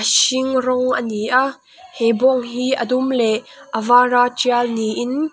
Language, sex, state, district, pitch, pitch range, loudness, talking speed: Mizo, female, Mizoram, Aizawl, 250 Hz, 240-260 Hz, -17 LUFS, 180 wpm